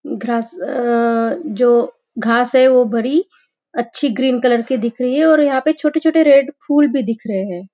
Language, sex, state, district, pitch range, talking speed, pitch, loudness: Hindi, female, Maharashtra, Nagpur, 235-295 Hz, 200 wpm, 255 Hz, -16 LUFS